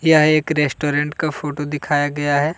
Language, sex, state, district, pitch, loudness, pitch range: Hindi, male, Jharkhand, Deoghar, 150 Hz, -19 LUFS, 145-155 Hz